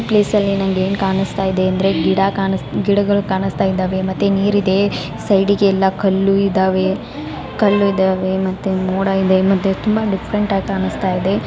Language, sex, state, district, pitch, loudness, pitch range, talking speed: Kannada, female, Karnataka, Bijapur, 195 Hz, -16 LUFS, 190-200 Hz, 135 wpm